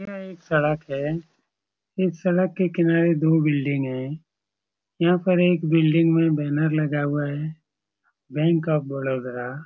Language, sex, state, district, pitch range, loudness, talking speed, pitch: Hindi, male, Bihar, Saran, 140-165 Hz, -22 LUFS, 150 wpm, 155 Hz